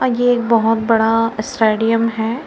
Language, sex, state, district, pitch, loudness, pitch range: Hindi, female, Uttar Pradesh, Varanasi, 230 Hz, -16 LUFS, 225-235 Hz